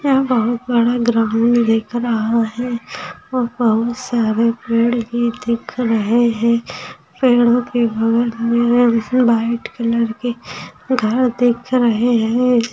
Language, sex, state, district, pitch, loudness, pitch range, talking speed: Hindi, female, Bihar, Saran, 235 Hz, -17 LUFS, 230-245 Hz, 120 wpm